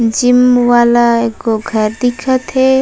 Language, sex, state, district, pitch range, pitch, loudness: Chhattisgarhi, female, Chhattisgarh, Raigarh, 230-250 Hz, 240 Hz, -12 LUFS